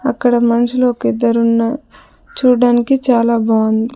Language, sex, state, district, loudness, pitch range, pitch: Telugu, female, Andhra Pradesh, Sri Satya Sai, -14 LUFS, 230-250 Hz, 240 Hz